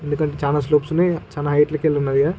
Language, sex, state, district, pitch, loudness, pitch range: Telugu, male, Andhra Pradesh, Guntur, 150 Hz, -19 LUFS, 145-155 Hz